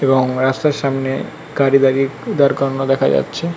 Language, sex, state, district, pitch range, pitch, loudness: Bengali, male, West Bengal, North 24 Parganas, 135-140 Hz, 135 Hz, -16 LUFS